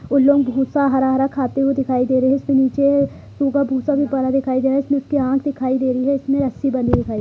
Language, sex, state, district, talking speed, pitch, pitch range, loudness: Hindi, female, Bihar, Purnia, 260 wpm, 270 Hz, 260-280 Hz, -18 LUFS